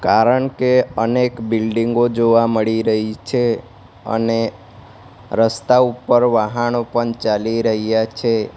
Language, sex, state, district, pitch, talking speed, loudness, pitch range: Gujarati, male, Gujarat, Valsad, 115 Hz, 110 wpm, -17 LUFS, 110-120 Hz